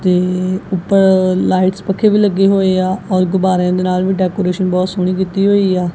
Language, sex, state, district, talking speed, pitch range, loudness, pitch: Punjabi, female, Punjab, Kapurthala, 190 wpm, 185-195 Hz, -14 LUFS, 185 Hz